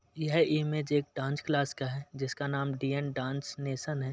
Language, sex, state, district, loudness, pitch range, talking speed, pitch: Hindi, male, Uttar Pradesh, Jalaun, -32 LUFS, 135-150 Hz, 190 wpm, 140 Hz